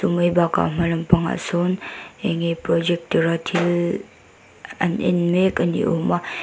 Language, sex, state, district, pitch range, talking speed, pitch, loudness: Mizo, female, Mizoram, Aizawl, 170-180 Hz, 170 wpm, 175 Hz, -21 LUFS